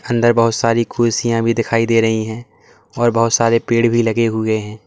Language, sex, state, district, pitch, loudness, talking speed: Hindi, male, Uttar Pradesh, Lalitpur, 115 Hz, -16 LUFS, 210 wpm